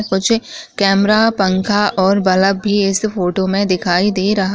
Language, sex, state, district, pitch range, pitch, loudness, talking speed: Hindi, female, Chhattisgarh, Raigarh, 190-210 Hz, 195 Hz, -15 LUFS, 145 wpm